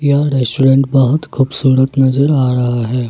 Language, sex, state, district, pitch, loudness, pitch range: Hindi, male, Jharkhand, Ranchi, 135 Hz, -13 LUFS, 130-140 Hz